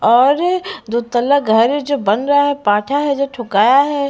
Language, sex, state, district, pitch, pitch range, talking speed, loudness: Hindi, female, Bihar, Patna, 275 Hz, 235-285 Hz, 175 wpm, -15 LUFS